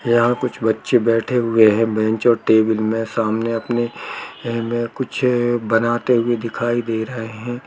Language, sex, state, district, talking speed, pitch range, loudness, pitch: Hindi, male, Uttar Pradesh, Jalaun, 165 wpm, 115-120 Hz, -18 LUFS, 115 Hz